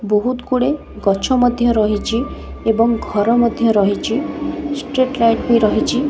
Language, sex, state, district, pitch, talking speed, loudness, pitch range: Odia, female, Odisha, Khordha, 235 Hz, 130 wpm, -17 LUFS, 220-260 Hz